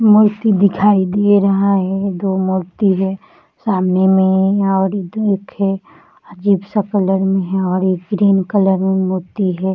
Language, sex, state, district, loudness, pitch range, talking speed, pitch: Hindi, female, Chhattisgarh, Balrampur, -15 LUFS, 190-200 Hz, 140 wpm, 195 Hz